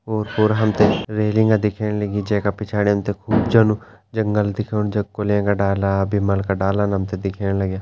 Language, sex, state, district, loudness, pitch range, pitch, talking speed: Hindi, male, Uttarakhand, Tehri Garhwal, -20 LUFS, 100-105 Hz, 105 Hz, 175 wpm